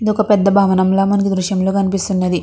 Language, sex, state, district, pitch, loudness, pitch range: Telugu, female, Andhra Pradesh, Krishna, 195 Hz, -15 LUFS, 190-200 Hz